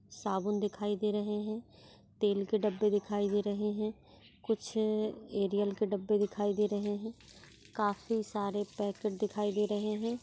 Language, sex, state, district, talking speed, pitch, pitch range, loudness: Hindi, female, Maharashtra, Chandrapur, 160 wpm, 210 Hz, 205-215 Hz, -34 LUFS